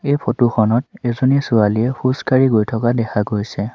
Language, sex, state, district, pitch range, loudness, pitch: Assamese, male, Assam, Sonitpur, 110-130 Hz, -17 LUFS, 120 Hz